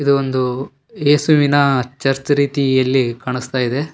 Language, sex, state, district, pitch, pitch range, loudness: Kannada, male, Karnataka, Bellary, 135 Hz, 130-145 Hz, -16 LUFS